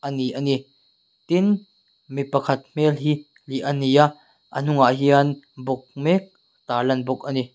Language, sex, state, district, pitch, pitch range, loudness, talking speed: Mizo, male, Mizoram, Aizawl, 140 Hz, 135-150 Hz, -22 LUFS, 135 wpm